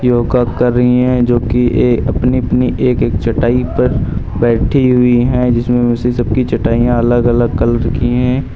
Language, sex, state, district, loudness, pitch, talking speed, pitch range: Hindi, male, Uttar Pradesh, Lucknow, -13 LUFS, 120 Hz, 175 wpm, 120-125 Hz